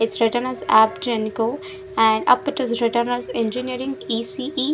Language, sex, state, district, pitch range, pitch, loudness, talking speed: English, female, Punjab, Fazilka, 225-265 Hz, 235 Hz, -21 LUFS, 165 wpm